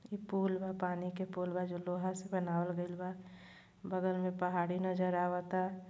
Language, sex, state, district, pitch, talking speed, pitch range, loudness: Bhojpuri, female, Uttar Pradesh, Gorakhpur, 185 Hz, 185 wpm, 180-185 Hz, -37 LUFS